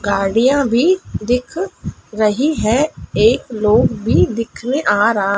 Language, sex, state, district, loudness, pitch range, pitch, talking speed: Hindi, female, Madhya Pradesh, Dhar, -16 LUFS, 210-280 Hz, 230 Hz, 135 wpm